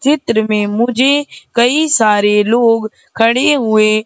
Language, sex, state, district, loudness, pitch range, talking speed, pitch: Hindi, female, Madhya Pradesh, Katni, -12 LUFS, 215-265 Hz, 120 wpm, 230 Hz